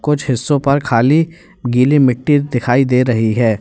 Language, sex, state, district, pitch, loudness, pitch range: Hindi, male, Uttar Pradesh, Lalitpur, 135 Hz, -14 LUFS, 120-145 Hz